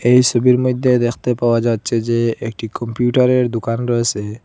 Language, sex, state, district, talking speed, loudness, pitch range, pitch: Bengali, male, Assam, Hailakandi, 160 wpm, -16 LUFS, 115-125 Hz, 120 Hz